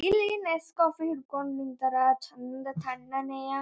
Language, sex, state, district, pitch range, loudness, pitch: Kannada, male, Karnataka, Gulbarga, 260-330 Hz, -30 LUFS, 275 Hz